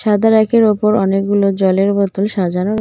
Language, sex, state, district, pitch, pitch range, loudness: Bengali, female, West Bengal, Cooch Behar, 200 Hz, 195-215 Hz, -14 LUFS